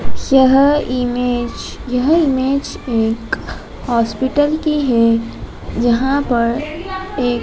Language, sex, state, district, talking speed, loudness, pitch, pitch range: Hindi, male, Madhya Pradesh, Dhar, 95 wpm, -16 LUFS, 260 Hz, 240-285 Hz